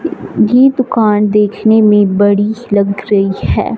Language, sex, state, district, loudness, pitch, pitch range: Hindi, male, Punjab, Fazilka, -11 LUFS, 210 Hz, 205-225 Hz